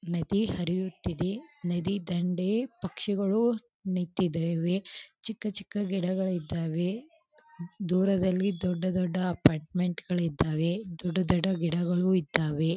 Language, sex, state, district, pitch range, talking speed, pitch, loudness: Kannada, female, Karnataka, Belgaum, 175-200 Hz, 90 wpm, 185 Hz, -29 LUFS